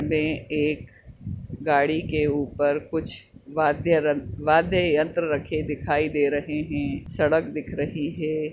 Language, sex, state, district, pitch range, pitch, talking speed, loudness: Hindi, male, Chhattisgarh, Bastar, 145-155 Hz, 150 Hz, 125 wpm, -24 LUFS